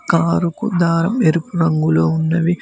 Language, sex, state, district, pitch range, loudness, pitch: Telugu, male, Telangana, Mahabubabad, 160-175 Hz, -16 LUFS, 170 Hz